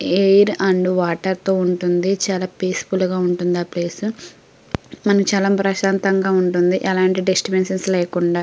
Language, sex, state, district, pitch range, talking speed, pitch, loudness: Telugu, female, Andhra Pradesh, Srikakulam, 180-195 Hz, 135 wpm, 185 Hz, -18 LUFS